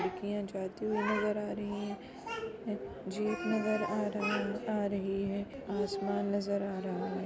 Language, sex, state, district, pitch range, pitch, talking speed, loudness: Hindi, female, Chhattisgarh, Kabirdham, 200-215 Hz, 205 Hz, 150 wpm, -35 LUFS